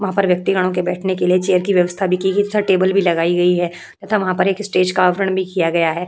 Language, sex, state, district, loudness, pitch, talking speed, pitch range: Hindi, female, Uttar Pradesh, Hamirpur, -17 LUFS, 185 Hz, 295 wpm, 180-195 Hz